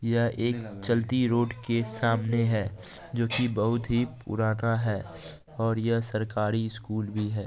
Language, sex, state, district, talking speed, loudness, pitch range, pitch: Maithili, male, Bihar, Supaul, 155 wpm, -28 LUFS, 110-115 Hz, 115 Hz